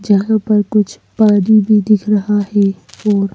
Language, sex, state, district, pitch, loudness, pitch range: Hindi, female, Madhya Pradesh, Bhopal, 210 Hz, -13 LUFS, 200-215 Hz